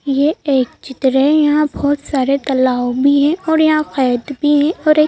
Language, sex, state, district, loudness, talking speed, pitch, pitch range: Hindi, female, Madhya Pradesh, Bhopal, -15 LUFS, 200 wpm, 285 Hz, 265-305 Hz